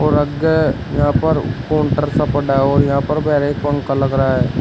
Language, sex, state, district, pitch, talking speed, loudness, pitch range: Hindi, male, Uttar Pradesh, Shamli, 145 Hz, 195 wpm, -16 LUFS, 135-150 Hz